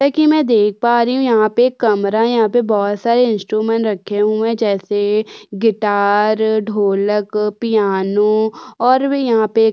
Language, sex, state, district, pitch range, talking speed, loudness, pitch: Hindi, female, Uttarakhand, Tehri Garhwal, 210-235 Hz, 180 wpm, -15 LUFS, 220 Hz